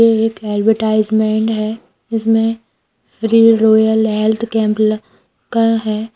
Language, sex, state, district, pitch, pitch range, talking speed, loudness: Hindi, female, Bihar, Gopalganj, 220 Hz, 215-225 Hz, 115 wpm, -15 LUFS